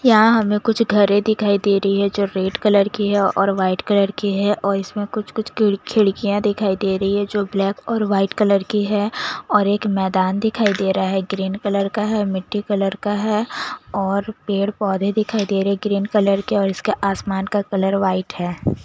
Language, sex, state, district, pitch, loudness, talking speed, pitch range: Hindi, female, Punjab, Kapurthala, 200 Hz, -19 LUFS, 205 wpm, 195-210 Hz